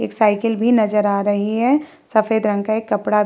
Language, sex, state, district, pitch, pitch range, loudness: Hindi, female, Bihar, Vaishali, 215 Hz, 205-225 Hz, -18 LUFS